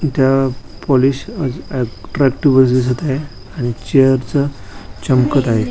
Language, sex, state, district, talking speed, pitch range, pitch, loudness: Marathi, male, Maharashtra, Washim, 115 wpm, 120-140 Hz, 130 Hz, -16 LUFS